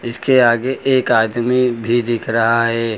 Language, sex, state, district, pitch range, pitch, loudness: Hindi, male, Uttar Pradesh, Lucknow, 115-125 Hz, 120 Hz, -16 LUFS